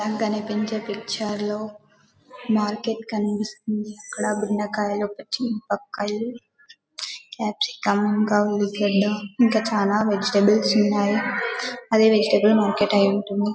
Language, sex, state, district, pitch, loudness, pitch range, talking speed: Telugu, female, Telangana, Karimnagar, 210 Hz, -22 LUFS, 205-220 Hz, 95 wpm